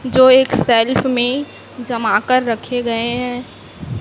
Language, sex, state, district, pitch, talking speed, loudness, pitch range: Hindi, female, Chhattisgarh, Raipur, 250 Hz, 135 wpm, -15 LUFS, 235-255 Hz